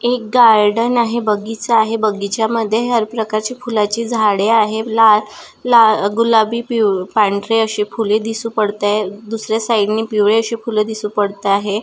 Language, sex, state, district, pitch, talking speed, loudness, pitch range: Marathi, female, Maharashtra, Nagpur, 220 Hz, 150 wpm, -15 LUFS, 210-230 Hz